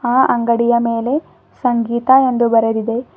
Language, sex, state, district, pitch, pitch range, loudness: Kannada, female, Karnataka, Bidar, 235 Hz, 235-255 Hz, -15 LUFS